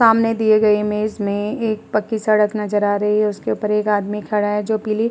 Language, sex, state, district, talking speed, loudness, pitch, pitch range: Hindi, female, Uttar Pradesh, Muzaffarnagar, 260 wpm, -18 LUFS, 210 Hz, 210-220 Hz